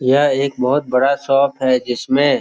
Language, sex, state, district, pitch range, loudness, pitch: Hindi, male, Bihar, Jamui, 130-140 Hz, -16 LUFS, 135 Hz